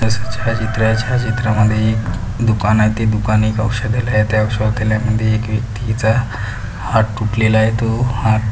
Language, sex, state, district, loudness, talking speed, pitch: Marathi, female, Maharashtra, Pune, -16 LUFS, 140 wpm, 110 Hz